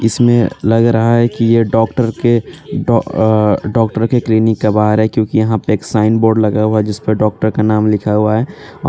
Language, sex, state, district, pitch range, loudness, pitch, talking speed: Hindi, male, Jharkhand, Garhwa, 105-115 Hz, -13 LUFS, 110 Hz, 215 wpm